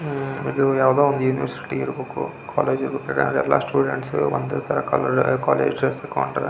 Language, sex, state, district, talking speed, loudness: Kannada, male, Karnataka, Belgaum, 100 wpm, -22 LUFS